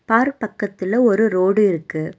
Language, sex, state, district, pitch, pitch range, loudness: Tamil, female, Tamil Nadu, Nilgiris, 205 Hz, 185-225 Hz, -18 LUFS